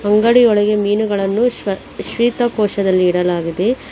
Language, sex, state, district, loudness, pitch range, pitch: Kannada, female, Karnataka, Bangalore, -15 LUFS, 195-230 Hz, 210 Hz